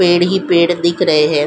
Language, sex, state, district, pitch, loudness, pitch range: Hindi, female, Goa, North and South Goa, 175 Hz, -13 LUFS, 155-180 Hz